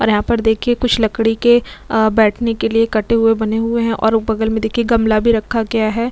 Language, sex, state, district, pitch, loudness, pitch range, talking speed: Hindi, female, Chhattisgarh, Korba, 225 Hz, -15 LUFS, 220-230 Hz, 255 wpm